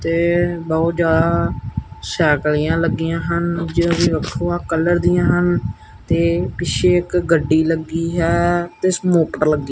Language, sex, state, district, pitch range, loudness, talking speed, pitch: Punjabi, male, Punjab, Kapurthala, 160-175 Hz, -18 LUFS, 125 wpm, 170 Hz